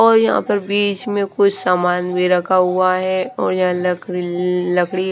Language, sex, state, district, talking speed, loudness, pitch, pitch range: Hindi, female, Himachal Pradesh, Shimla, 175 wpm, -17 LUFS, 185 Hz, 180-200 Hz